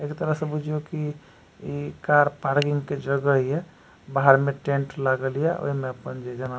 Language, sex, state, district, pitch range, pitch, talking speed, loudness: Maithili, male, Bihar, Supaul, 135-150 Hz, 140 Hz, 200 wpm, -24 LUFS